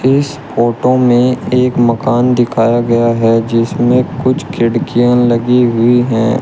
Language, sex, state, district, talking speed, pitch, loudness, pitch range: Hindi, male, Uttar Pradesh, Shamli, 130 wpm, 120 Hz, -12 LUFS, 115-125 Hz